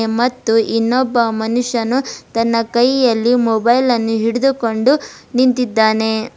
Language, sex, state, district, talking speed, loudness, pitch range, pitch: Kannada, female, Karnataka, Bidar, 75 wpm, -15 LUFS, 225-250 Hz, 235 Hz